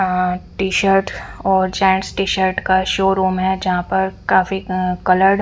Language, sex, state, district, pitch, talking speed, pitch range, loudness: Hindi, female, Punjab, Fazilka, 190 Hz, 175 wpm, 185-195 Hz, -17 LUFS